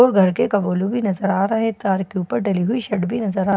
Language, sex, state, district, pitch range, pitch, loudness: Hindi, female, Bihar, Katihar, 190-225 Hz, 200 Hz, -20 LUFS